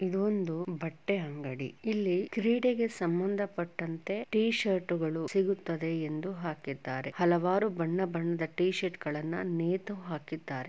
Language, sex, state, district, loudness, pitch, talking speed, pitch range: Kannada, female, Karnataka, Chamarajanagar, -32 LUFS, 175 Hz, 120 wpm, 160-195 Hz